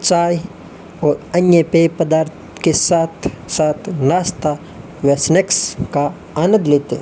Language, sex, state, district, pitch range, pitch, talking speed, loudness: Hindi, male, Rajasthan, Bikaner, 145-175 Hz, 165 Hz, 130 wpm, -16 LUFS